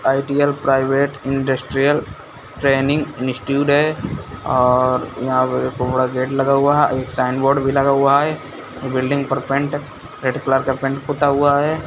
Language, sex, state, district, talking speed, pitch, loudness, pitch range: Hindi, male, Bihar, Gopalganj, 170 wpm, 135 Hz, -18 LUFS, 130-140 Hz